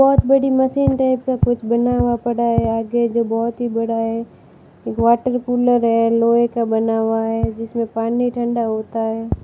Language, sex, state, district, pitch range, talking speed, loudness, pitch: Hindi, female, Rajasthan, Barmer, 225-245 Hz, 185 wpm, -18 LUFS, 235 Hz